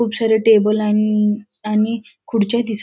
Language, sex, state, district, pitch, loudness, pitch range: Marathi, female, Maharashtra, Solapur, 215 Hz, -17 LUFS, 210-225 Hz